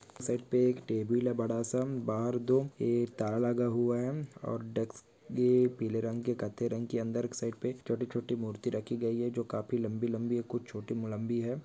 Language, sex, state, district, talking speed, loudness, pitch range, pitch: Hindi, male, Chhattisgarh, Jashpur, 205 wpm, -33 LUFS, 115-125 Hz, 120 Hz